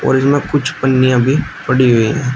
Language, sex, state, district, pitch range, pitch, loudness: Hindi, male, Uttar Pradesh, Shamli, 130-140 Hz, 130 Hz, -13 LUFS